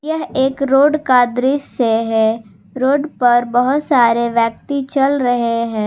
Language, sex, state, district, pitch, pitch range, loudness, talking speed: Hindi, female, Jharkhand, Garhwa, 250 Hz, 230-275 Hz, -15 LUFS, 145 wpm